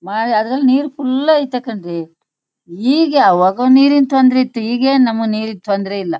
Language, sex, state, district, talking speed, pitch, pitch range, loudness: Kannada, female, Karnataka, Shimoga, 155 wpm, 245 Hz, 205-270 Hz, -14 LUFS